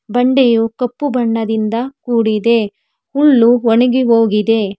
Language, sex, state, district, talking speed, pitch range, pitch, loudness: Kannada, female, Karnataka, Bangalore, 90 wpm, 225-255 Hz, 235 Hz, -13 LUFS